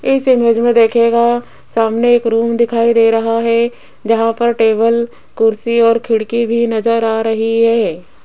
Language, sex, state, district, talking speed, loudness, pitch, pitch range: Hindi, female, Rajasthan, Jaipur, 160 wpm, -13 LUFS, 230 Hz, 225-235 Hz